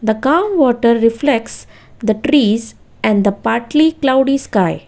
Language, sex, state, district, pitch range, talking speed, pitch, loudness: English, female, Gujarat, Valsad, 225-290 Hz, 110 wpm, 240 Hz, -14 LUFS